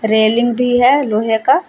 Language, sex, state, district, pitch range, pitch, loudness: Hindi, female, Jharkhand, Palamu, 220-250 Hz, 235 Hz, -13 LUFS